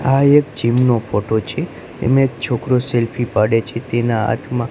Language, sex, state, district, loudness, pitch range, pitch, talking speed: Gujarati, male, Gujarat, Gandhinagar, -17 LUFS, 115-130 Hz, 120 Hz, 180 wpm